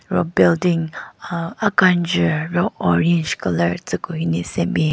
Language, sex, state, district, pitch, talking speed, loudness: Rengma, female, Nagaland, Kohima, 160 Hz, 145 wpm, -19 LUFS